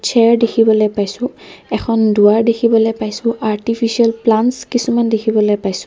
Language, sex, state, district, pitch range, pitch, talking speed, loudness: Assamese, female, Assam, Kamrup Metropolitan, 215-230 Hz, 225 Hz, 125 wpm, -14 LUFS